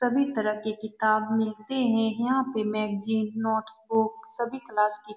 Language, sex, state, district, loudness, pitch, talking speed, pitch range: Hindi, female, Bihar, Saran, -27 LUFS, 220 Hz, 160 wpm, 215-235 Hz